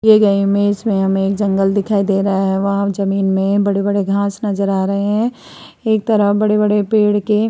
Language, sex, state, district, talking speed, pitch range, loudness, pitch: Hindi, female, Uttar Pradesh, Muzaffarnagar, 210 wpm, 195-210 Hz, -15 LUFS, 200 Hz